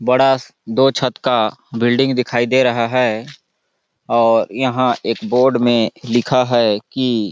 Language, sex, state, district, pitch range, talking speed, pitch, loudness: Hindi, male, Chhattisgarh, Balrampur, 115-130 Hz, 140 wpm, 125 Hz, -16 LUFS